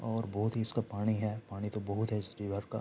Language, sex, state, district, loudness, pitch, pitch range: Hindi, male, Bihar, Saharsa, -35 LUFS, 110 Hz, 105-110 Hz